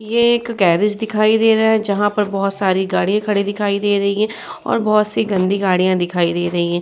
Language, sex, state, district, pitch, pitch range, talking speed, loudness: Hindi, female, Bihar, Vaishali, 205 Hz, 190-215 Hz, 230 wpm, -16 LUFS